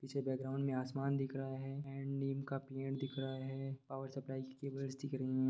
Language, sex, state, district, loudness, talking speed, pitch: Hindi, male, Bihar, Samastipur, -42 LUFS, 230 wpm, 135 Hz